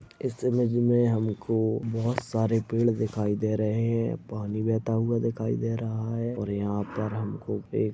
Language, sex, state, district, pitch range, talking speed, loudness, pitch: Hindi, male, Maharashtra, Sindhudurg, 110-115 Hz, 175 wpm, -28 LUFS, 115 Hz